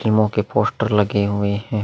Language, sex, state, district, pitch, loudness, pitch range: Hindi, male, Bihar, Vaishali, 105 Hz, -19 LUFS, 100-110 Hz